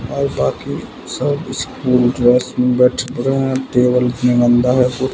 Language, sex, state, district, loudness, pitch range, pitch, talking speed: Hindi, male, Bihar, West Champaran, -16 LUFS, 125-130 Hz, 125 Hz, 150 wpm